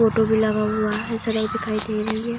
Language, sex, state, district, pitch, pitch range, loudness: Hindi, female, Bihar, Darbhanga, 220 Hz, 215-225 Hz, -22 LUFS